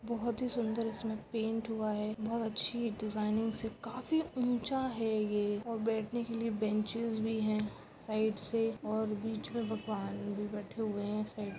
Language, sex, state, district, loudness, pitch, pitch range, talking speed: Hindi, female, Goa, North and South Goa, -36 LUFS, 220 Hz, 215-230 Hz, 150 wpm